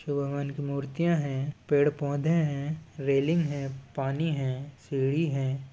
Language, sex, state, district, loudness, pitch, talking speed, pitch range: Chhattisgarhi, male, Chhattisgarh, Balrampur, -29 LUFS, 140 Hz, 145 wpm, 135-150 Hz